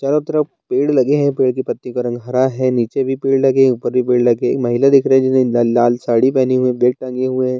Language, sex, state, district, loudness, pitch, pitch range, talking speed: Hindi, male, Bihar, Bhagalpur, -15 LUFS, 130 Hz, 125-135 Hz, 285 wpm